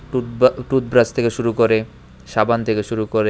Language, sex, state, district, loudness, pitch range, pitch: Bengali, male, Tripura, West Tripura, -18 LUFS, 110-125 Hz, 115 Hz